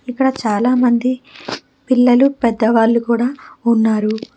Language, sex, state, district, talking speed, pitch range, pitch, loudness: Telugu, female, Telangana, Hyderabad, 80 wpm, 230-255 Hz, 245 Hz, -15 LUFS